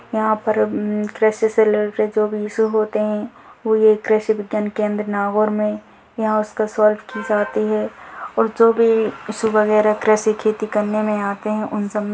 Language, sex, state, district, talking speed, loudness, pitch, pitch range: Hindi, female, Rajasthan, Nagaur, 190 wpm, -19 LUFS, 215 Hz, 210-220 Hz